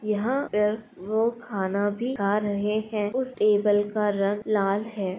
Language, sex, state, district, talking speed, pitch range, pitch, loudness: Hindi, male, Bihar, Supaul, 160 wpm, 205-220 Hz, 210 Hz, -25 LUFS